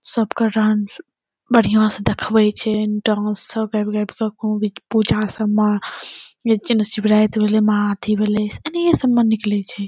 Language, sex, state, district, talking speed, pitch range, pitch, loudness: Maithili, female, Bihar, Saharsa, 120 wpm, 210-220 Hz, 215 Hz, -18 LUFS